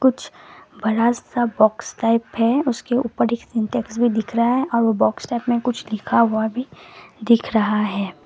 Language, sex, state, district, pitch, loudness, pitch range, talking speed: Hindi, female, Assam, Kamrup Metropolitan, 235 Hz, -20 LUFS, 220-240 Hz, 190 wpm